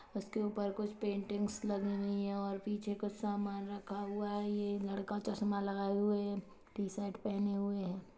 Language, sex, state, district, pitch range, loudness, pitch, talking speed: Hindi, male, Chhattisgarh, Kabirdham, 200-205 Hz, -38 LUFS, 205 Hz, 170 wpm